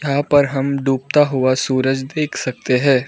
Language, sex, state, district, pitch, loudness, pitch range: Hindi, male, Arunachal Pradesh, Lower Dibang Valley, 135 Hz, -17 LUFS, 130-145 Hz